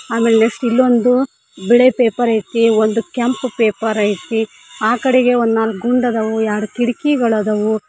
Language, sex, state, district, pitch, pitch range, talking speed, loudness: Kannada, female, Karnataka, Koppal, 230 Hz, 220-245 Hz, 130 wpm, -15 LUFS